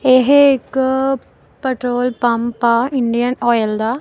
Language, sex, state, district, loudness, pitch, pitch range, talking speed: Punjabi, female, Punjab, Kapurthala, -16 LUFS, 250 Hz, 235-265 Hz, 120 wpm